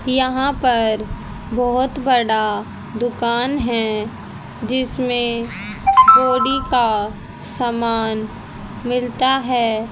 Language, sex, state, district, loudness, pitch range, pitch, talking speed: Hindi, female, Haryana, Rohtak, -18 LUFS, 225-260 Hz, 245 Hz, 75 wpm